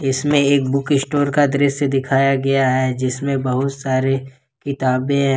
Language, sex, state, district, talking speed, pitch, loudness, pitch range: Hindi, male, Jharkhand, Ranchi, 145 wpm, 135 Hz, -18 LUFS, 130-140 Hz